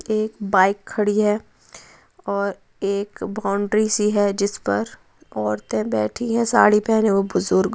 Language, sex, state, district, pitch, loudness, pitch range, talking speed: Hindi, female, West Bengal, Purulia, 205 Hz, -21 LUFS, 195-215 Hz, 140 wpm